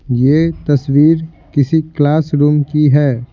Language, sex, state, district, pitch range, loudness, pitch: Hindi, male, Bihar, Patna, 140-155 Hz, -13 LUFS, 145 Hz